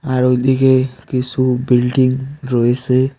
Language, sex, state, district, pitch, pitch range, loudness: Bengali, male, West Bengal, Cooch Behar, 130 Hz, 125-130 Hz, -15 LUFS